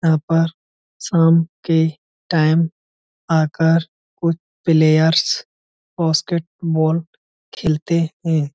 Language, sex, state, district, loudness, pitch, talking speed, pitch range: Hindi, male, Uttar Pradesh, Budaun, -18 LUFS, 165 Hz, 75 wpm, 155-165 Hz